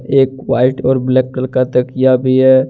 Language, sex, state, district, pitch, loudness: Hindi, male, Jharkhand, Deoghar, 130 Hz, -13 LUFS